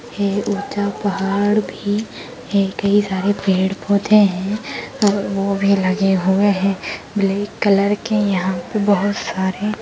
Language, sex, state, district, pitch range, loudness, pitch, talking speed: Hindi, female, Uttarakhand, Tehri Garhwal, 195-205 Hz, -18 LUFS, 200 Hz, 140 wpm